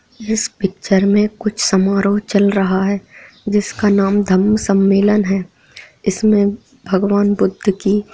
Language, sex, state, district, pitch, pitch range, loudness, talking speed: Hindi, male, Bihar, Lakhisarai, 200 Hz, 195-205 Hz, -16 LUFS, 125 wpm